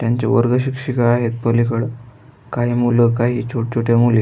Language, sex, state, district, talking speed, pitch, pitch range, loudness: Marathi, male, Maharashtra, Aurangabad, 155 wpm, 120 Hz, 115-125 Hz, -17 LUFS